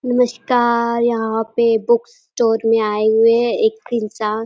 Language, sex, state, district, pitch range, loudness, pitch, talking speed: Hindi, female, Uttar Pradesh, Deoria, 225-240 Hz, -17 LUFS, 235 Hz, 150 wpm